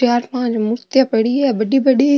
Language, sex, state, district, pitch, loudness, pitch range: Rajasthani, female, Rajasthan, Nagaur, 250 Hz, -16 LUFS, 235-265 Hz